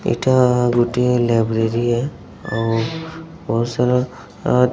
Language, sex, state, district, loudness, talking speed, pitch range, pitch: Odia, male, Odisha, Sambalpur, -18 LUFS, 90 wpm, 115-125 Hz, 120 Hz